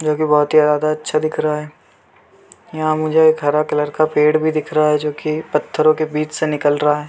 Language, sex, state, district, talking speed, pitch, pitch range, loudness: Hindi, male, Chhattisgarh, Bilaspur, 235 wpm, 155 Hz, 150-155 Hz, -17 LUFS